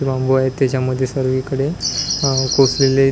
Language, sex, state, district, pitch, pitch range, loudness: Marathi, male, Maharashtra, Washim, 135 Hz, 130-135 Hz, -17 LUFS